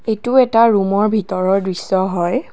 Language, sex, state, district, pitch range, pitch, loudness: Assamese, female, Assam, Kamrup Metropolitan, 190-230 Hz, 205 Hz, -16 LUFS